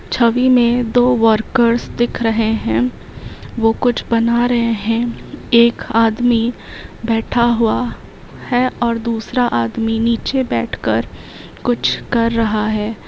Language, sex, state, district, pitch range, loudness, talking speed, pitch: Hindi, female, Uttar Pradesh, Hamirpur, 220-240 Hz, -16 LUFS, 120 wpm, 230 Hz